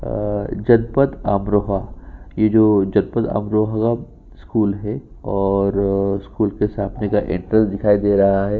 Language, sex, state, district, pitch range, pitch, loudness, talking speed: Hindi, male, Uttar Pradesh, Jyotiba Phule Nagar, 100-110 Hz, 105 Hz, -19 LUFS, 140 wpm